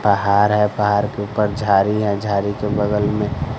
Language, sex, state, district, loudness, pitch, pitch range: Hindi, male, Bihar, West Champaran, -18 LUFS, 105 Hz, 100-105 Hz